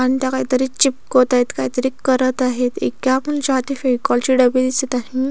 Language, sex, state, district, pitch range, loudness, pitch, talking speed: Marathi, female, Maharashtra, Solapur, 255-265 Hz, -18 LUFS, 255 Hz, 160 wpm